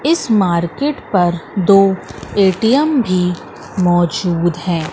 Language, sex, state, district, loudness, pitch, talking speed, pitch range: Hindi, female, Madhya Pradesh, Katni, -15 LUFS, 185 Hz, 95 wpm, 175-215 Hz